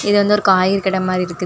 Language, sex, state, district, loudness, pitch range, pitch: Tamil, female, Tamil Nadu, Kanyakumari, -15 LUFS, 185-205 Hz, 190 Hz